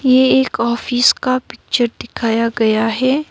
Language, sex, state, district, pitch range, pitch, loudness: Hindi, female, West Bengal, Darjeeling, 230-260 Hz, 245 Hz, -16 LUFS